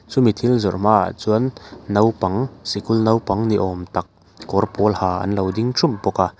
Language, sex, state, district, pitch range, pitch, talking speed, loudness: Mizo, male, Mizoram, Aizawl, 95-115 Hz, 105 Hz, 195 wpm, -19 LUFS